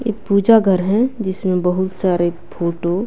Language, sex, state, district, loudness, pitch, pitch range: Hindi, female, Bihar, West Champaran, -17 LUFS, 190 Hz, 180-210 Hz